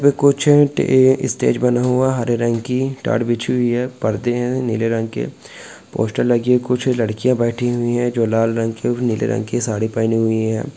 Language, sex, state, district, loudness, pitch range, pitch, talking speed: Hindi, male, Chhattisgarh, Korba, -18 LUFS, 115-125 Hz, 120 Hz, 210 wpm